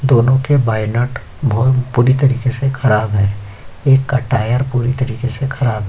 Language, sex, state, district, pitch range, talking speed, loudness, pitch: Hindi, male, Uttar Pradesh, Jyotiba Phule Nagar, 115-135 Hz, 185 wpm, -15 LUFS, 125 Hz